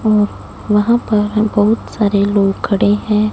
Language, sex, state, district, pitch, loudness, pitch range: Hindi, female, Punjab, Fazilka, 210 Hz, -15 LUFS, 205-215 Hz